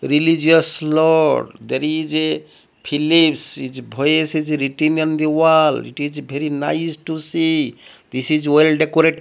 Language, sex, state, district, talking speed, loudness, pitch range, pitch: English, male, Odisha, Malkangiri, 155 wpm, -17 LUFS, 150-160 Hz, 155 Hz